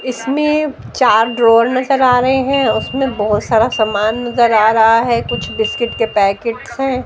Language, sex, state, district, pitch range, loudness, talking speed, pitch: Hindi, male, Delhi, New Delhi, 225-265 Hz, -14 LUFS, 170 wpm, 240 Hz